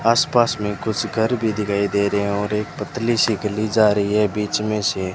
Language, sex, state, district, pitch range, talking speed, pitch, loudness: Hindi, male, Rajasthan, Bikaner, 105-110 Hz, 235 wpm, 105 Hz, -20 LUFS